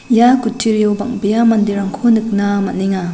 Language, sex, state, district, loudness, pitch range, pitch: Garo, female, Meghalaya, West Garo Hills, -14 LUFS, 200-230 Hz, 215 Hz